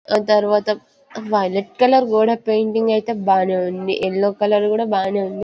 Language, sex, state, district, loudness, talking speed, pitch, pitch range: Telugu, female, Telangana, Karimnagar, -18 LUFS, 165 wpm, 210 Hz, 200-220 Hz